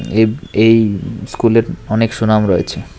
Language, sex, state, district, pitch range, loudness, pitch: Bengali, male, Tripura, West Tripura, 110-115 Hz, -14 LUFS, 110 Hz